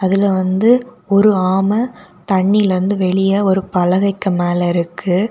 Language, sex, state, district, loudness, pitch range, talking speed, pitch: Tamil, female, Tamil Nadu, Kanyakumari, -15 LUFS, 185-200 Hz, 125 wpm, 190 Hz